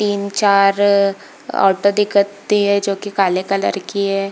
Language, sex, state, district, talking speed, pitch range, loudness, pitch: Hindi, female, Chhattisgarh, Bilaspur, 165 wpm, 195-205 Hz, -16 LUFS, 200 Hz